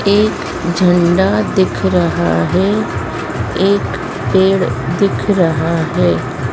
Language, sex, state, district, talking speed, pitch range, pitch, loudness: Hindi, female, Madhya Pradesh, Dhar, 90 wpm, 160-195 Hz, 175 Hz, -14 LUFS